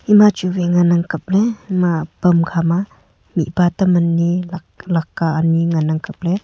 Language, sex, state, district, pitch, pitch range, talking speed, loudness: Wancho, female, Arunachal Pradesh, Longding, 175 Hz, 165-185 Hz, 170 wpm, -17 LUFS